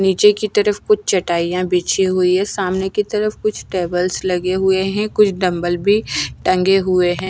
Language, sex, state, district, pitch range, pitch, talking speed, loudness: Hindi, female, Himachal Pradesh, Shimla, 180-210 Hz, 190 Hz, 180 wpm, -17 LUFS